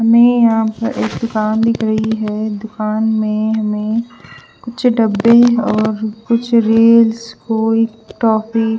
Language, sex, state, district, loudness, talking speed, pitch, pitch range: Hindi, female, Punjab, Fazilka, -14 LUFS, 125 wpm, 225 Hz, 215-230 Hz